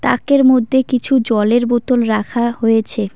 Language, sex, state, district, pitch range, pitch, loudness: Bengali, female, West Bengal, Cooch Behar, 225-255 Hz, 240 Hz, -14 LUFS